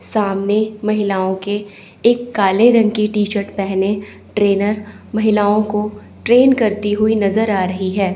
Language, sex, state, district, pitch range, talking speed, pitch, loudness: Hindi, female, Chandigarh, Chandigarh, 200-215 Hz, 140 wpm, 210 Hz, -16 LUFS